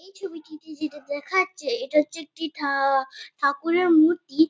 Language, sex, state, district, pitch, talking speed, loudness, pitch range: Bengali, female, West Bengal, Kolkata, 315 Hz, 145 wpm, -24 LUFS, 290-350 Hz